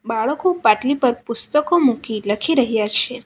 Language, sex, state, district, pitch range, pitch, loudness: Gujarati, female, Gujarat, Valsad, 220-285 Hz, 245 Hz, -18 LUFS